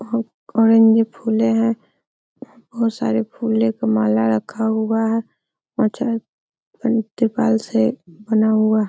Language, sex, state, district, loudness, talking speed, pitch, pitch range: Hindi, female, Uttar Pradesh, Hamirpur, -19 LUFS, 95 wpm, 225 Hz, 215-230 Hz